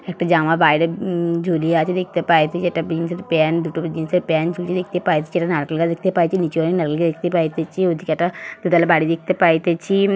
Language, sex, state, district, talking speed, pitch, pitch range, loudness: Bengali, female, West Bengal, Jhargram, 195 wpm, 170 Hz, 165-180 Hz, -19 LUFS